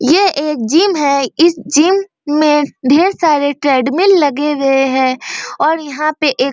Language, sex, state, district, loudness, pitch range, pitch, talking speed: Hindi, female, Bihar, Bhagalpur, -13 LUFS, 275-325 Hz, 295 Hz, 165 wpm